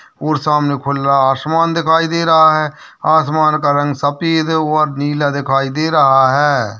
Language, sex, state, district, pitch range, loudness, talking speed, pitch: Hindi, male, Maharashtra, Nagpur, 140-160 Hz, -14 LUFS, 165 wpm, 150 Hz